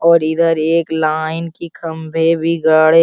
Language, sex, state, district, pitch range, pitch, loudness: Hindi, male, Bihar, Araria, 160-165 Hz, 165 Hz, -15 LUFS